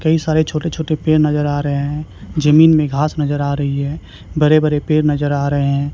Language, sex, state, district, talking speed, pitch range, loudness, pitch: Hindi, male, Chhattisgarh, Raipur, 230 wpm, 145-155 Hz, -16 LUFS, 150 Hz